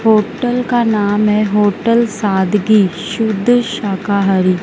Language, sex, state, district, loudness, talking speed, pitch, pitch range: Hindi, female, Madhya Pradesh, Dhar, -14 LUFS, 105 wpm, 210 Hz, 200-230 Hz